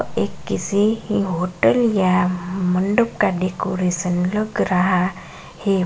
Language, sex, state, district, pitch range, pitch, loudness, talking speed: Kumaoni, female, Uttarakhand, Tehri Garhwal, 180-205 Hz, 185 Hz, -20 LUFS, 110 wpm